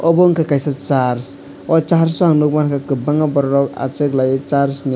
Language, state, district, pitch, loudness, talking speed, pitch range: Kokborok, Tripura, West Tripura, 140 Hz, -16 LUFS, 195 wpm, 135-155 Hz